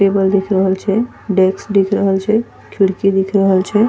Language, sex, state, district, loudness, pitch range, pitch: Angika, female, Bihar, Bhagalpur, -15 LUFS, 190-205 Hz, 195 Hz